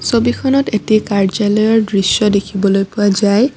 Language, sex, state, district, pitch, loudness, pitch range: Assamese, female, Assam, Kamrup Metropolitan, 210 Hz, -14 LUFS, 200-225 Hz